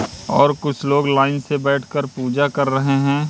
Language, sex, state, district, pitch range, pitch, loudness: Hindi, male, Madhya Pradesh, Katni, 135-145 Hz, 140 Hz, -18 LUFS